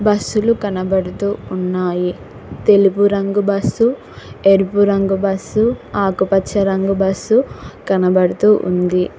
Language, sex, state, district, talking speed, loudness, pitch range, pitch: Telugu, female, Telangana, Hyderabad, 90 wpm, -16 LUFS, 190-205 Hz, 195 Hz